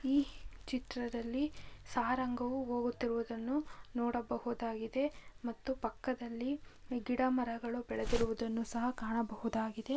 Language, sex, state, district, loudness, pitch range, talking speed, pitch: Kannada, female, Karnataka, Bijapur, -38 LUFS, 230-255 Hz, 70 wpm, 240 Hz